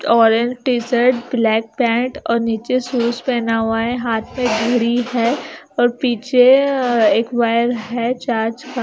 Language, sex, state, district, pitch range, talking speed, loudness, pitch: Hindi, female, Himachal Pradesh, Shimla, 230-250 Hz, 150 wpm, -17 LUFS, 240 Hz